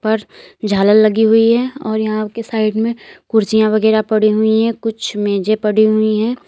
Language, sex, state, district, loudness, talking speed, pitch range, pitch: Hindi, female, Uttar Pradesh, Lalitpur, -15 LUFS, 185 wpm, 215-225 Hz, 220 Hz